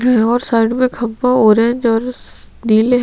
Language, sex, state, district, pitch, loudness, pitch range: Hindi, female, Chhattisgarh, Sukma, 235 Hz, -14 LUFS, 225-250 Hz